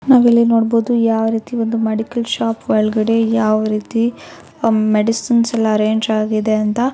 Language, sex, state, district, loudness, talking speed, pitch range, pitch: Kannada, female, Karnataka, Shimoga, -16 LUFS, 140 wpm, 215-230 Hz, 225 Hz